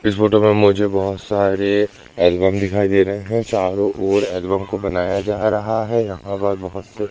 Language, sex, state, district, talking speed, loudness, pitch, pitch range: Hindi, male, Madhya Pradesh, Umaria, 195 wpm, -18 LUFS, 100 Hz, 95-105 Hz